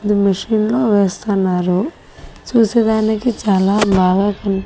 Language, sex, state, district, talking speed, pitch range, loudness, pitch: Telugu, female, Andhra Pradesh, Annamaya, 105 wpm, 195-220 Hz, -15 LUFS, 205 Hz